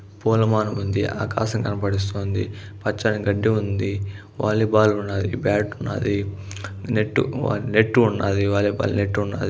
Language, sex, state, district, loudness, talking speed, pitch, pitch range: Telugu, male, Telangana, Nalgonda, -22 LUFS, 105 wpm, 105 Hz, 100-110 Hz